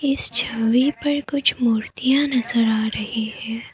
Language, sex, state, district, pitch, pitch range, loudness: Hindi, female, Assam, Kamrup Metropolitan, 240 Hz, 225-275 Hz, -19 LUFS